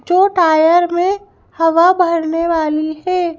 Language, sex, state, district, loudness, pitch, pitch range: Hindi, female, Madhya Pradesh, Bhopal, -14 LUFS, 340 Hz, 325-360 Hz